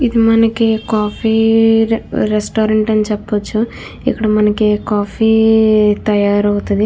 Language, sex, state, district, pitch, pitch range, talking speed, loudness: Telugu, female, Andhra Pradesh, Krishna, 215 Hz, 210-225 Hz, 95 wpm, -14 LUFS